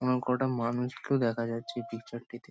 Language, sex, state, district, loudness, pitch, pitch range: Bengali, male, West Bengal, Kolkata, -32 LUFS, 120 Hz, 115-125 Hz